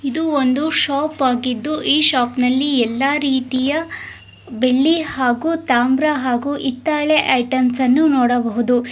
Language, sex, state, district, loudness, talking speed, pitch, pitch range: Kannada, female, Karnataka, Raichur, -17 LUFS, 115 wpm, 265 Hz, 250-300 Hz